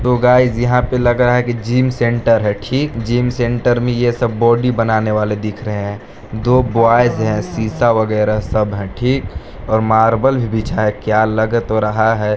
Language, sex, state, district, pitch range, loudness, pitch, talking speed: Hindi, male, Chhattisgarh, Balrampur, 110-120 Hz, -15 LUFS, 115 Hz, 195 wpm